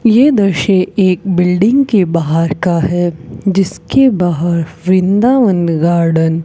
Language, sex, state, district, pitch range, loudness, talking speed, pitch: Hindi, female, Rajasthan, Bikaner, 170-200 Hz, -12 LUFS, 120 wpm, 180 Hz